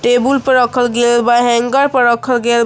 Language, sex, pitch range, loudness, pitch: Bhojpuri, female, 240-255 Hz, -12 LUFS, 245 Hz